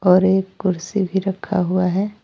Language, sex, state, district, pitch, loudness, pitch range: Hindi, female, Jharkhand, Deoghar, 190 Hz, -19 LUFS, 185-195 Hz